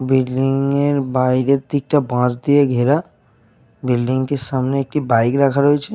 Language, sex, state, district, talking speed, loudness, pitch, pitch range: Bengali, male, Jharkhand, Jamtara, 140 wpm, -17 LUFS, 135 Hz, 125-140 Hz